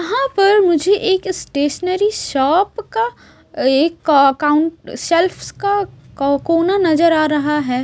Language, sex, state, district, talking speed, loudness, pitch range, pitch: Hindi, female, Odisha, Sambalpur, 120 wpm, -16 LUFS, 295-395 Hz, 335 Hz